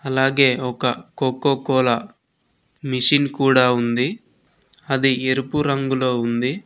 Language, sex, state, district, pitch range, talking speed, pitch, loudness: Telugu, male, Telangana, Mahabubabad, 125-135 Hz, 100 wpm, 130 Hz, -19 LUFS